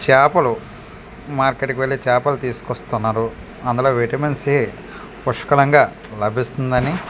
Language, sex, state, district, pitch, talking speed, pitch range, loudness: Telugu, male, Andhra Pradesh, Manyam, 130 Hz, 100 wpm, 120-140 Hz, -19 LUFS